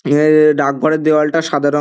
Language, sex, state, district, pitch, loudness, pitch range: Bengali, male, West Bengal, Dakshin Dinajpur, 150 Hz, -13 LUFS, 145-155 Hz